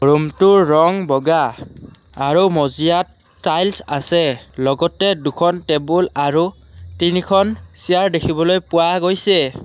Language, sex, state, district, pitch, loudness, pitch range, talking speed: Assamese, male, Assam, Kamrup Metropolitan, 170 Hz, -16 LUFS, 145-180 Hz, 100 wpm